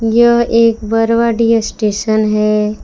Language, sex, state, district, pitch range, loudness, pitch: Hindi, female, Jharkhand, Palamu, 215-230 Hz, -13 LUFS, 225 Hz